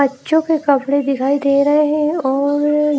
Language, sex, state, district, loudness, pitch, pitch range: Hindi, female, Haryana, Rohtak, -16 LUFS, 285 Hz, 275-300 Hz